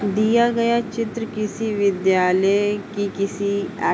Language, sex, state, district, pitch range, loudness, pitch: Hindi, female, Uttar Pradesh, Hamirpur, 200-225 Hz, -20 LUFS, 205 Hz